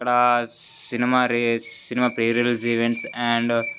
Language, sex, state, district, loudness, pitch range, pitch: Telugu, male, Telangana, Nalgonda, -22 LUFS, 115-125 Hz, 120 Hz